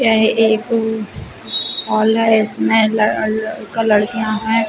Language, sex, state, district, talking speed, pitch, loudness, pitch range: Hindi, female, Chhattisgarh, Bilaspur, 115 wpm, 220 Hz, -16 LUFS, 215-225 Hz